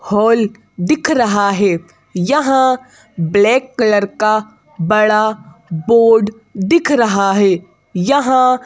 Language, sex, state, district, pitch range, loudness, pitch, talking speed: Hindi, female, Madhya Pradesh, Bhopal, 195-235 Hz, -14 LUFS, 215 Hz, 95 wpm